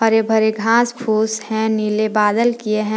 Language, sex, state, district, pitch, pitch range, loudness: Hindi, female, Jharkhand, Palamu, 220 Hz, 215-225 Hz, -17 LUFS